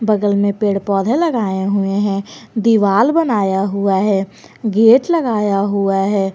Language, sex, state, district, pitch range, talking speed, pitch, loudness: Hindi, female, Jharkhand, Garhwa, 195-225 Hz, 140 wpm, 205 Hz, -15 LUFS